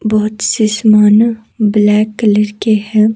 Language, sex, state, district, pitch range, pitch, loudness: Hindi, female, Himachal Pradesh, Shimla, 210-220 Hz, 215 Hz, -11 LUFS